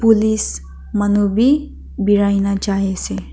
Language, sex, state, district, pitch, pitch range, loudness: Nagamese, female, Nagaland, Dimapur, 205 Hz, 195-220 Hz, -17 LUFS